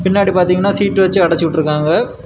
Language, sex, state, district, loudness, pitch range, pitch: Tamil, male, Tamil Nadu, Kanyakumari, -13 LUFS, 165-195 Hz, 185 Hz